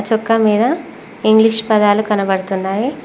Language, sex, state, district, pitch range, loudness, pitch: Telugu, female, Telangana, Mahabubabad, 205-225 Hz, -15 LUFS, 220 Hz